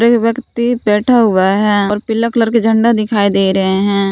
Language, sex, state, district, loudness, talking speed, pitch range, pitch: Hindi, female, Jharkhand, Palamu, -13 LUFS, 205 wpm, 200-230 Hz, 215 Hz